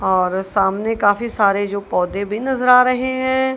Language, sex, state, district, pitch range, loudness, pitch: Hindi, female, Punjab, Kapurthala, 195-250 Hz, -17 LUFS, 210 Hz